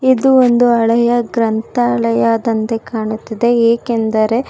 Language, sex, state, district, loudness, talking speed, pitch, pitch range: Kannada, female, Karnataka, Bangalore, -14 LUFS, 80 wpm, 230 Hz, 220-240 Hz